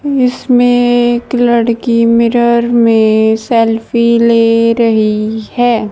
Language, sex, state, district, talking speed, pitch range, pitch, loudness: Hindi, female, Haryana, Charkhi Dadri, 90 wpm, 225-240 Hz, 235 Hz, -10 LUFS